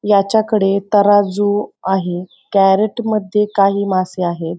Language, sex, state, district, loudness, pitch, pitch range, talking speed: Marathi, female, Maharashtra, Pune, -15 LUFS, 200 Hz, 190-210 Hz, 115 wpm